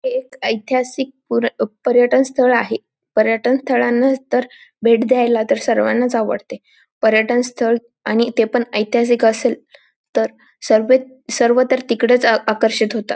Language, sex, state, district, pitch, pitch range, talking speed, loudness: Marathi, female, Maharashtra, Dhule, 240 Hz, 230-255 Hz, 130 wpm, -17 LUFS